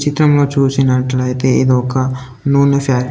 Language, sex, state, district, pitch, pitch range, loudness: Telugu, male, Telangana, Komaram Bheem, 130 Hz, 125-140 Hz, -14 LUFS